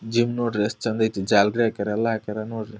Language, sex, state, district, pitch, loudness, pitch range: Kannada, male, Karnataka, Dharwad, 110 Hz, -23 LUFS, 105-115 Hz